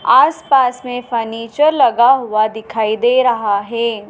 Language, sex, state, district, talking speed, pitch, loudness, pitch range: Hindi, female, Madhya Pradesh, Dhar, 130 wpm, 235 Hz, -15 LUFS, 220-255 Hz